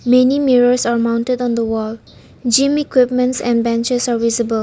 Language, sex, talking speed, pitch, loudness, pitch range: English, female, 170 wpm, 245 Hz, -15 LUFS, 230-250 Hz